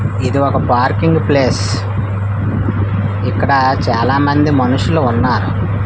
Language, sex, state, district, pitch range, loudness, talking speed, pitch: Telugu, male, Andhra Pradesh, Manyam, 100-125 Hz, -14 LUFS, 90 wpm, 110 Hz